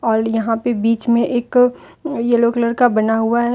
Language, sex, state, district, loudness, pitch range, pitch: Hindi, female, Jharkhand, Deoghar, -17 LUFS, 225-245 Hz, 235 Hz